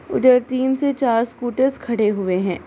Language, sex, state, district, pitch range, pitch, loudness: Hindi, female, Bihar, Gopalganj, 220-260 Hz, 245 Hz, -19 LUFS